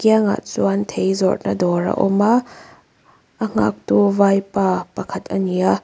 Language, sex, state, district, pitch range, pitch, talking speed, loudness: Mizo, female, Mizoram, Aizawl, 180-205 Hz, 195 Hz, 135 wpm, -18 LUFS